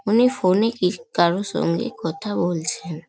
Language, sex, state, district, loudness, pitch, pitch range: Bengali, female, West Bengal, North 24 Parganas, -21 LUFS, 180 Hz, 165-205 Hz